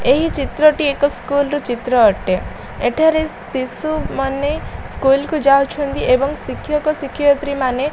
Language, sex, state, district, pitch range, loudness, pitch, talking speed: Odia, female, Odisha, Malkangiri, 270-305 Hz, -17 LUFS, 285 Hz, 130 wpm